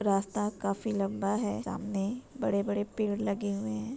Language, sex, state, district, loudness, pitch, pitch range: Hindi, female, Uttar Pradesh, Etah, -32 LUFS, 205 Hz, 200-215 Hz